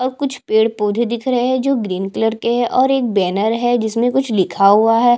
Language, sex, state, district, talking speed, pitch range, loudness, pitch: Hindi, female, Chhattisgarh, Jashpur, 230 wpm, 215-255 Hz, -16 LUFS, 235 Hz